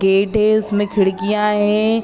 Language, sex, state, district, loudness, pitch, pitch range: Hindi, female, Jharkhand, Sahebganj, -16 LUFS, 210 Hz, 200-215 Hz